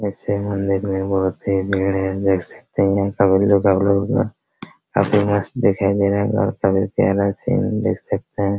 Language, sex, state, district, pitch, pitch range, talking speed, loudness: Hindi, male, Bihar, Araria, 100 Hz, 95-100 Hz, 140 wpm, -19 LUFS